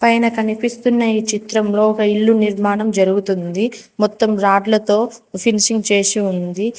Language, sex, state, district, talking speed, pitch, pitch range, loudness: Telugu, female, Telangana, Mahabubabad, 115 wpm, 215 Hz, 205-225 Hz, -16 LUFS